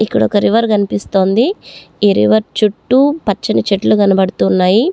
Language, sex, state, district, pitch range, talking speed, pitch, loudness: Telugu, female, Andhra Pradesh, Chittoor, 190-225 Hz, 135 wpm, 200 Hz, -13 LUFS